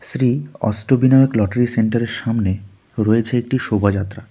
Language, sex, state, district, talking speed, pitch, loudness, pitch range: Bengali, male, West Bengal, Darjeeling, 110 wpm, 115 Hz, -18 LUFS, 105-130 Hz